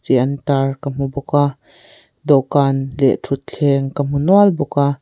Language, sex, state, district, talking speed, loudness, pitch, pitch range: Mizo, female, Mizoram, Aizawl, 165 wpm, -17 LUFS, 140 Hz, 135-145 Hz